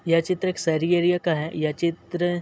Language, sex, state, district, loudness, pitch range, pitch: Hindi, male, Uttar Pradesh, Muzaffarnagar, -24 LUFS, 160-175 Hz, 170 Hz